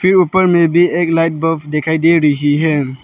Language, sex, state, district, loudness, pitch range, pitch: Hindi, male, Arunachal Pradesh, Lower Dibang Valley, -13 LUFS, 150-175 Hz, 165 Hz